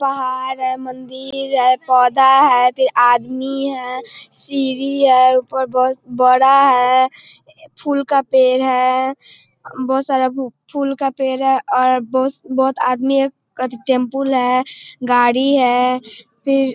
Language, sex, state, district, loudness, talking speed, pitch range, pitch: Hindi, female, Bihar, East Champaran, -16 LUFS, 100 wpm, 255-270 Hz, 260 Hz